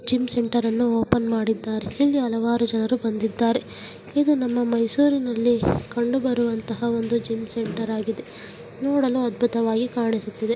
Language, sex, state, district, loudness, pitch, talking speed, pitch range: Kannada, female, Karnataka, Mysore, -23 LUFS, 235 Hz, 115 wpm, 225-245 Hz